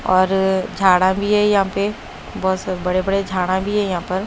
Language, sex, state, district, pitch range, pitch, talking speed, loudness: Hindi, female, Punjab, Kapurthala, 185-200 Hz, 190 Hz, 195 wpm, -18 LUFS